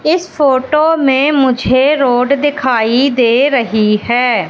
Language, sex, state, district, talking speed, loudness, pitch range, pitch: Hindi, female, Madhya Pradesh, Katni, 120 wpm, -12 LUFS, 245-290 Hz, 265 Hz